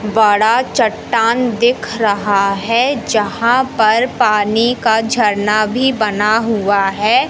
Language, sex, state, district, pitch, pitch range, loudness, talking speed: Hindi, male, Madhya Pradesh, Katni, 220 Hz, 210-240 Hz, -14 LUFS, 115 wpm